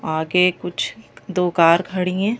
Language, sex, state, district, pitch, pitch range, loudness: Hindi, female, Madhya Pradesh, Bhopal, 180 Hz, 170-190 Hz, -19 LUFS